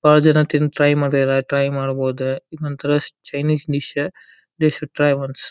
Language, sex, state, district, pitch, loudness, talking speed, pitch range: Kannada, male, Karnataka, Dharwad, 145 Hz, -19 LUFS, 175 wpm, 135-150 Hz